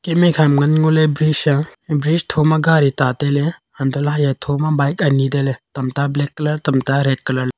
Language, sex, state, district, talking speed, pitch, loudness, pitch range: Wancho, male, Arunachal Pradesh, Longding, 200 wpm, 145 Hz, -17 LUFS, 135-155 Hz